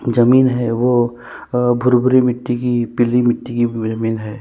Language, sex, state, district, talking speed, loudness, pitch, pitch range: Hindi, male, Chhattisgarh, Kabirdham, 175 wpm, -16 LUFS, 120 Hz, 120-125 Hz